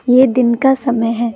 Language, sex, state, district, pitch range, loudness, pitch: Hindi, female, Assam, Kamrup Metropolitan, 235-260 Hz, -13 LUFS, 245 Hz